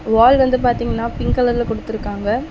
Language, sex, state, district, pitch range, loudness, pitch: Tamil, female, Tamil Nadu, Chennai, 220-250 Hz, -17 LUFS, 240 Hz